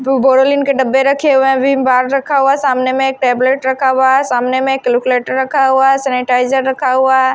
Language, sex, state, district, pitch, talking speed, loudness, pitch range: Hindi, female, Himachal Pradesh, Shimla, 265 Hz, 235 wpm, -12 LUFS, 260-270 Hz